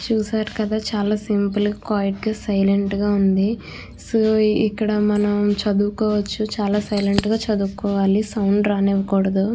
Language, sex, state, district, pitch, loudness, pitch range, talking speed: Telugu, female, Andhra Pradesh, Krishna, 205 Hz, -20 LUFS, 200-215 Hz, 145 wpm